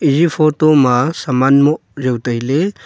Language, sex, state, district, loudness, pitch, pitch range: Wancho, male, Arunachal Pradesh, Longding, -14 LUFS, 145 Hz, 130-155 Hz